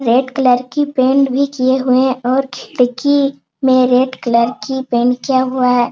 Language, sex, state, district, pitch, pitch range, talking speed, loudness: Hindi, female, Jharkhand, Sahebganj, 255 Hz, 250-270 Hz, 185 wpm, -14 LUFS